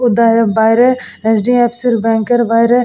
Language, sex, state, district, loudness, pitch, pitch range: Bengali, female, West Bengal, Purulia, -12 LUFS, 230 Hz, 225-245 Hz